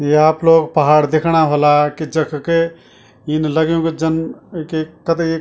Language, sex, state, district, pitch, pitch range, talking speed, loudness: Garhwali, male, Uttarakhand, Tehri Garhwal, 160 Hz, 150-165 Hz, 190 wpm, -15 LUFS